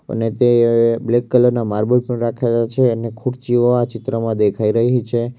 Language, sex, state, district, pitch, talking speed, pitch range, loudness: Gujarati, male, Gujarat, Valsad, 120 Hz, 190 wpm, 115-125 Hz, -17 LUFS